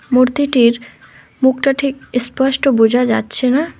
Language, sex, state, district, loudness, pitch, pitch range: Bengali, female, West Bengal, Alipurduar, -14 LUFS, 260 Hz, 245-275 Hz